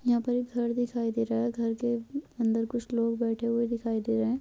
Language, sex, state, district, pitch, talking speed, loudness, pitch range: Hindi, female, Uttar Pradesh, Jyotiba Phule Nagar, 235 Hz, 260 wpm, -30 LUFS, 230-240 Hz